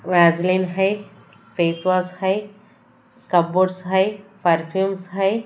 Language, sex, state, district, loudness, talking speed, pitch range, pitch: Hindi, female, Punjab, Kapurthala, -20 LUFS, 100 wpm, 180-195 Hz, 185 Hz